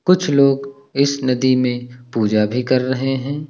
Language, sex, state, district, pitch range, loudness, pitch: Hindi, male, Uttar Pradesh, Lucknow, 125-140 Hz, -18 LUFS, 130 Hz